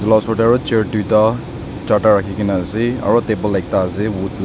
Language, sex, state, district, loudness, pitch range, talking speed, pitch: Nagamese, male, Nagaland, Dimapur, -16 LUFS, 100-115 Hz, 190 wpm, 110 Hz